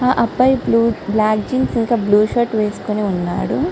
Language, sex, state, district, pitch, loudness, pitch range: Telugu, female, Andhra Pradesh, Chittoor, 230 Hz, -17 LUFS, 210-250 Hz